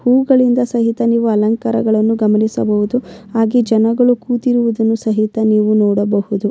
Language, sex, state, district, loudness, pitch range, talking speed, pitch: Kannada, female, Karnataka, Bellary, -14 LUFS, 215-240 Hz, 100 wpm, 225 Hz